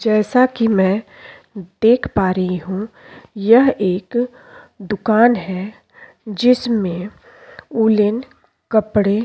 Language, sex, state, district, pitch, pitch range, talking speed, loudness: Hindi, female, Uttar Pradesh, Jyotiba Phule Nagar, 215 Hz, 195-240 Hz, 95 wpm, -17 LUFS